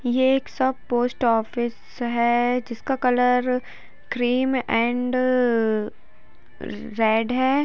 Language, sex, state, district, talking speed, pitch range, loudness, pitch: Hindi, female, Jharkhand, Jamtara, 85 wpm, 235-255 Hz, -22 LUFS, 245 Hz